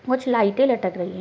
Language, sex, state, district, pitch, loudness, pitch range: Hindi, female, Maharashtra, Pune, 235 Hz, -21 LUFS, 185-260 Hz